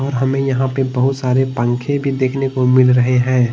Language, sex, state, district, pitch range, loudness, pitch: Hindi, male, Bihar, Patna, 125-135 Hz, -16 LUFS, 130 Hz